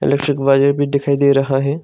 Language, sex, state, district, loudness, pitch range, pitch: Hindi, male, Arunachal Pradesh, Longding, -15 LUFS, 135-140 Hz, 140 Hz